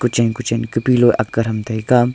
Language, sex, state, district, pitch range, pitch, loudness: Wancho, male, Arunachal Pradesh, Longding, 115-120 Hz, 115 Hz, -17 LUFS